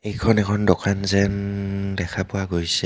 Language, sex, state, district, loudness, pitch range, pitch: Assamese, male, Assam, Kamrup Metropolitan, -22 LUFS, 95-100 Hz, 100 Hz